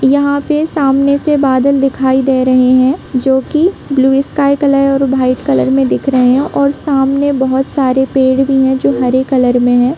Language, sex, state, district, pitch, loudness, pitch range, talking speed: Hindi, female, Jharkhand, Jamtara, 270 Hz, -11 LUFS, 260-280 Hz, 185 wpm